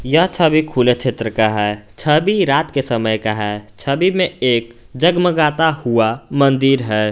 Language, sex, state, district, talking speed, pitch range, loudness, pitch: Hindi, male, Jharkhand, Garhwa, 160 wpm, 110-155 Hz, -16 LUFS, 130 Hz